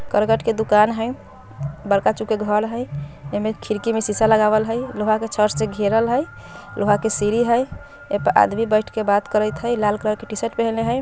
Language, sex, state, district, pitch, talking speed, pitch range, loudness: Bajjika, female, Bihar, Vaishali, 215 Hz, 205 wpm, 210-225 Hz, -20 LUFS